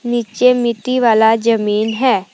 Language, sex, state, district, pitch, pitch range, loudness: Hindi, female, Jharkhand, Palamu, 230 Hz, 220-250 Hz, -14 LUFS